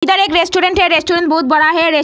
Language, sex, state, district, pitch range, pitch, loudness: Hindi, female, Bihar, Lakhisarai, 320-365 Hz, 340 Hz, -12 LUFS